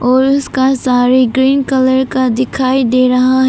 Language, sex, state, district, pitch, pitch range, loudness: Hindi, female, Arunachal Pradesh, Papum Pare, 260 Hz, 255-265 Hz, -12 LUFS